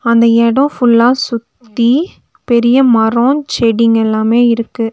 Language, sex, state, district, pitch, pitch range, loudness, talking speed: Tamil, female, Tamil Nadu, Nilgiris, 235 Hz, 230-250 Hz, -11 LUFS, 110 wpm